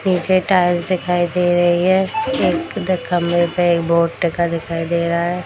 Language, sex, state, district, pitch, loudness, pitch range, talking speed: Hindi, female, Bihar, Darbhanga, 175 Hz, -17 LUFS, 170-185 Hz, 185 wpm